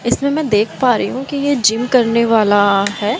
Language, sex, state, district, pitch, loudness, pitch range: Hindi, female, Haryana, Jhajjar, 235 Hz, -15 LUFS, 210-265 Hz